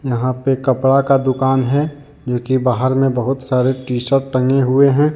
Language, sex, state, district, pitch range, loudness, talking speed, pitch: Hindi, male, Jharkhand, Deoghar, 130-135 Hz, -16 LUFS, 195 wpm, 130 Hz